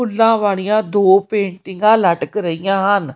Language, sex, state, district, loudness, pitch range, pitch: Punjabi, female, Punjab, Kapurthala, -15 LUFS, 190-215 Hz, 200 Hz